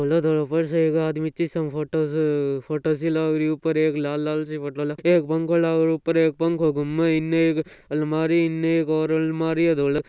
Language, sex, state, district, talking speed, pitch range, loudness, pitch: Hindi, male, Rajasthan, Churu, 185 wpm, 155-165 Hz, -22 LUFS, 160 Hz